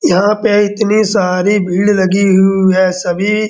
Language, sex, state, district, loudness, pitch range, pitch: Hindi, male, Bihar, Darbhanga, -12 LUFS, 185-210 Hz, 195 Hz